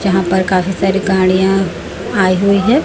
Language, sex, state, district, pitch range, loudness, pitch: Hindi, female, Chhattisgarh, Raipur, 185-195 Hz, -13 LUFS, 190 Hz